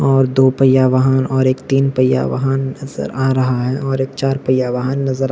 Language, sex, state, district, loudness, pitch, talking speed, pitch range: Hindi, male, Chhattisgarh, Rajnandgaon, -16 LUFS, 130 Hz, 225 wpm, 130-135 Hz